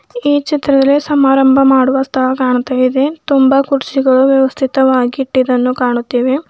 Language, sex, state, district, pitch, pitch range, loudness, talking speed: Kannada, female, Karnataka, Bidar, 265 Hz, 255-275 Hz, -12 LUFS, 120 wpm